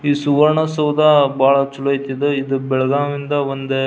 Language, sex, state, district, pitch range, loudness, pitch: Kannada, male, Karnataka, Belgaum, 135-145 Hz, -16 LUFS, 140 Hz